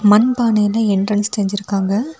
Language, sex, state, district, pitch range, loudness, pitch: Tamil, female, Tamil Nadu, Kanyakumari, 205-225 Hz, -16 LUFS, 210 Hz